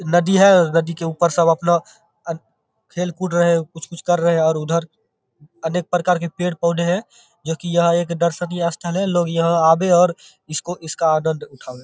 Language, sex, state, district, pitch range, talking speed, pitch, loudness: Hindi, male, Bihar, Begusarai, 165-175 Hz, 200 wpm, 170 Hz, -18 LUFS